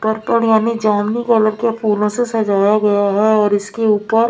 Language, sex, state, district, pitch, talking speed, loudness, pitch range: Hindi, female, Maharashtra, Mumbai Suburban, 215 Hz, 195 wpm, -15 LUFS, 210-225 Hz